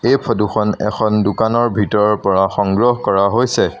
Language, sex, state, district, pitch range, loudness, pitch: Assamese, male, Assam, Sonitpur, 100-115 Hz, -15 LUFS, 105 Hz